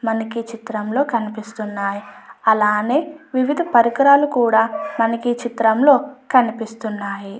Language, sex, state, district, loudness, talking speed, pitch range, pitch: Telugu, female, Andhra Pradesh, Anantapur, -18 LUFS, 80 wpm, 220-265 Hz, 230 Hz